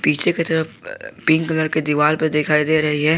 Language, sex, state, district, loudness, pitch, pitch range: Hindi, male, Jharkhand, Garhwa, -18 LUFS, 155 Hz, 150-160 Hz